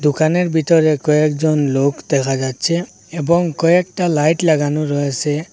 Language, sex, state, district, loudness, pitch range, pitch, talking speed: Bengali, male, Assam, Hailakandi, -16 LUFS, 145-170 Hz, 155 Hz, 120 wpm